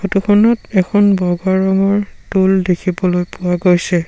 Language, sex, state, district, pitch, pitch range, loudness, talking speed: Assamese, male, Assam, Sonitpur, 190 Hz, 180-200 Hz, -14 LUFS, 120 wpm